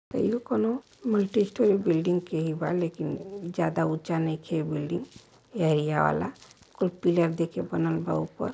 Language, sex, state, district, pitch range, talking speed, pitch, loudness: Hindi, male, Uttar Pradesh, Varanasi, 155-195 Hz, 150 wpm, 165 Hz, -28 LUFS